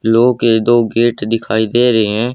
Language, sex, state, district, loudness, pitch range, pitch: Hindi, male, Haryana, Rohtak, -13 LUFS, 110-120 Hz, 115 Hz